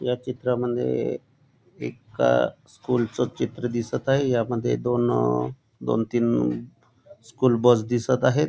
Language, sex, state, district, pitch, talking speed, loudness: Marathi, male, Maharashtra, Chandrapur, 120 Hz, 115 wpm, -24 LUFS